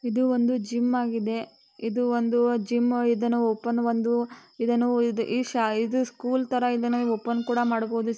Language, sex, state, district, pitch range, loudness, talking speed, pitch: Kannada, female, Karnataka, Belgaum, 230-245 Hz, -25 LUFS, 160 wpm, 240 Hz